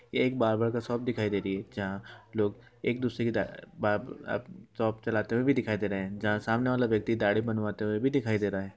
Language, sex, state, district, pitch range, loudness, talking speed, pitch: Maithili, male, Bihar, Samastipur, 105-120 Hz, -30 LUFS, 245 wpm, 110 Hz